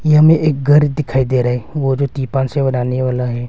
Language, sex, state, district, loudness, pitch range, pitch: Hindi, male, Arunachal Pradesh, Longding, -15 LUFS, 125-150 Hz, 135 Hz